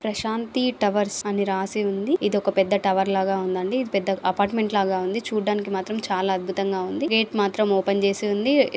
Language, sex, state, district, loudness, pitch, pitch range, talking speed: Telugu, female, Andhra Pradesh, Visakhapatnam, -23 LUFS, 200 Hz, 195-215 Hz, 150 wpm